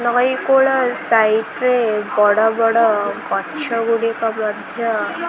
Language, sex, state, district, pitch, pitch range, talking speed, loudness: Odia, female, Odisha, Khordha, 230 Hz, 220-250 Hz, 100 wpm, -17 LUFS